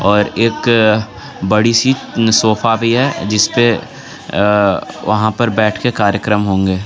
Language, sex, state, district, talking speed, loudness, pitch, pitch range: Hindi, male, Jharkhand, Garhwa, 120 wpm, -14 LUFS, 110 Hz, 105-115 Hz